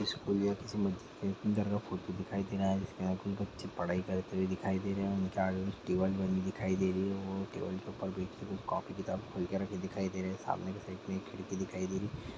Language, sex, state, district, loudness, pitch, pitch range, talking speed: Hindi, male, Bihar, Muzaffarpur, -37 LUFS, 95 Hz, 95-100 Hz, 280 wpm